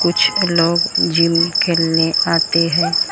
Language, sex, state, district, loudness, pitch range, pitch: Hindi, male, Maharashtra, Gondia, -14 LUFS, 165-170 Hz, 170 Hz